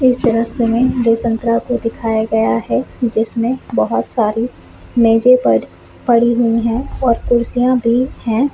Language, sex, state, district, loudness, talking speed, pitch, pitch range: Hindi, female, Chhattisgarh, Balrampur, -15 LUFS, 150 wpm, 235 Hz, 225-245 Hz